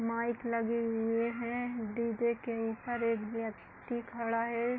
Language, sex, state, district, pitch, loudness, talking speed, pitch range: Hindi, female, Uttar Pradesh, Hamirpur, 230 Hz, -35 LUFS, 150 wpm, 230-235 Hz